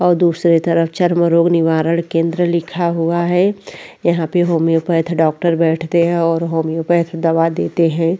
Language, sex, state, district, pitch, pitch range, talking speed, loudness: Hindi, female, Uttarakhand, Tehri Garhwal, 170 Hz, 165-170 Hz, 155 wpm, -15 LUFS